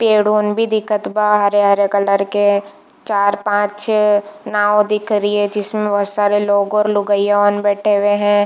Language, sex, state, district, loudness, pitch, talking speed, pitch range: Hindi, female, Chhattisgarh, Bilaspur, -15 LUFS, 205 Hz, 155 wpm, 205-210 Hz